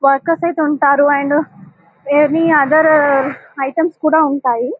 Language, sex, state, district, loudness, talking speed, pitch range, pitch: Telugu, female, Telangana, Karimnagar, -14 LUFS, 125 wpm, 275-315 Hz, 290 Hz